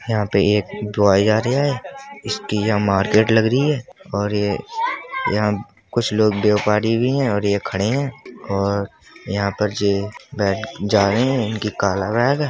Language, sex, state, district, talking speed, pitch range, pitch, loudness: Hindi, male, Uttar Pradesh, Budaun, 165 wpm, 100-120 Hz, 105 Hz, -19 LUFS